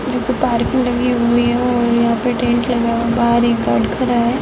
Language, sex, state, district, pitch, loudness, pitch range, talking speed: Hindi, female, Bihar, Sitamarhi, 240 Hz, -16 LUFS, 235-245 Hz, 255 wpm